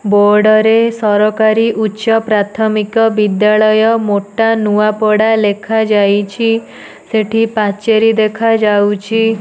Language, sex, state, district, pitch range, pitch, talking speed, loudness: Odia, female, Odisha, Nuapada, 210-225 Hz, 215 Hz, 75 wpm, -12 LUFS